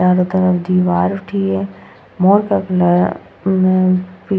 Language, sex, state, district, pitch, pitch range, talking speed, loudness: Hindi, female, Goa, North and South Goa, 185 Hz, 170-185 Hz, 150 wpm, -15 LUFS